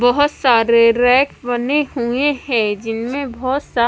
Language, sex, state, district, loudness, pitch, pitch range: Hindi, female, Punjab, Kapurthala, -16 LUFS, 245 Hz, 235-275 Hz